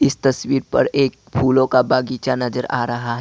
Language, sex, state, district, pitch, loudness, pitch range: Hindi, male, Assam, Kamrup Metropolitan, 130 Hz, -18 LUFS, 125-135 Hz